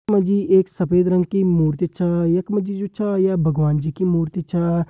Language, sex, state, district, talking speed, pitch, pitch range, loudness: Hindi, male, Uttarakhand, Tehri Garhwal, 245 wpm, 180 Hz, 170-195 Hz, -19 LUFS